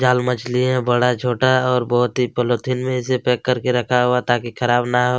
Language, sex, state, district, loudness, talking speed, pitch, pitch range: Hindi, male, Chhattisgarh, Kabirdham, -18 LUFS, 230 wpm, 125 Hz, 120-125 Hz